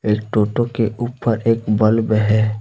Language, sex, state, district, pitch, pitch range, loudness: Hindi, male, Jharkhand, Deoghar, 110 Hz, 110-115 Hz, -18 LUFS